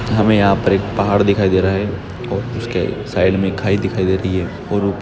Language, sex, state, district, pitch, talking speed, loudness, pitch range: Hindi, male, Maharashtra, Nagpur, 100 Hz, 225 wpm, -17 LUFS, 95-100 Hz